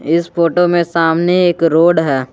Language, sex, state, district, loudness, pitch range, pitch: Hindi, male, Jharkhand, Garhwa, -13 LUFS, 165-175 Hz, 170 Hz